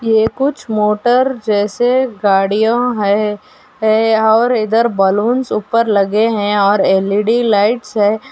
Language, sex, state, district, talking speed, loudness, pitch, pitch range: Hindi, female, Uttar Pradesh, Ghazipur, 125 wpm, -14 LUFS, 220 Hz, 205-240 Hz